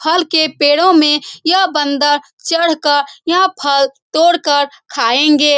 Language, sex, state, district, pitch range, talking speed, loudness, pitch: Hindi, female, Bihar, Saran, 285-340 Hz, 140 wpm, -13 LUFS, 300 Hz